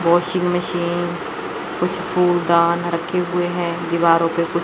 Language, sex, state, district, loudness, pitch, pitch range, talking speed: Hindi, male, Chandigarh, Chandigarh, -19 LUFS, 175 Hz, 170-180 Hz, 130 wpm